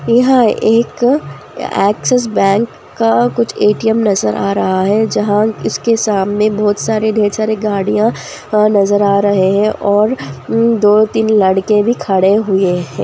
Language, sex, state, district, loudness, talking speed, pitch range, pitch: Hindi, female, Andhra Pradesh, Anantapur, -13 LUFS, 150 wpm, 200-225 Hz, 210 Hz